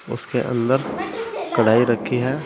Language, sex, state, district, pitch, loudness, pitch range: Hindi, male, Uttar Pradesh, Saharanpur, 125 Hz, -21 LUFS, 120-155 Hz